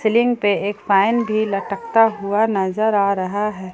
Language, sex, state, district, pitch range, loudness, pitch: Hindi, female, Jharkhand, Palamu, 200-220 Hz, -18 LUFS, 205 Hz